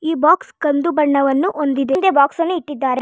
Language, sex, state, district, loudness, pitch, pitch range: Kannada, female, Karnataka, Bangalore, -16 LUFS, 300 Hz, 280-340 Hz